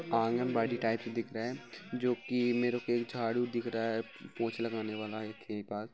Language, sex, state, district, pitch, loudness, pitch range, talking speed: Hindi, male, Chhattisgarh, Raigarh, 115 Hz, -35 LUFS, 115-120 Hz, 200 wpm